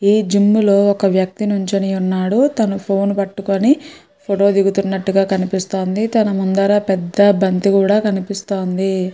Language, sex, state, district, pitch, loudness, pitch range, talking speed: Telugu, female, Andhra Pradesh, Srikakulam, 195 Hz, -16 LUFS, 195-205 Hz, 130 wpm